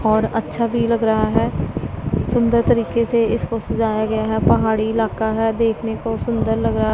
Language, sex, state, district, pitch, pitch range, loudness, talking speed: Hindi, female, Punjab, Pathankot, 220 Hz, 215-230 Hz, -19 LUFS, 180 wpm